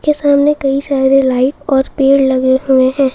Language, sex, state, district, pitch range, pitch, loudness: Hindi, female, Bihar, Saharsa, 265-285 Hz, 270 Hz, -12 LUFS